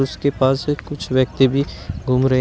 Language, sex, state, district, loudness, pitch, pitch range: Hindi, male, Uttar Pradesh, Shamli, -19 LUFS, 130 Hz, 130-140 Hz